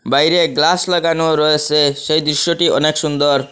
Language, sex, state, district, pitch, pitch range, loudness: Bengali, male, Assam, Hailakandi, 155 Hz, 145-165 Hz, -14 LUFS